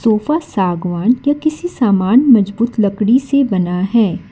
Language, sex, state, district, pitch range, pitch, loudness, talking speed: Hindi, female, Karnataka, Bangalore, 195-270 Hz, 225 Hz, -14 LUFS, 140 wpm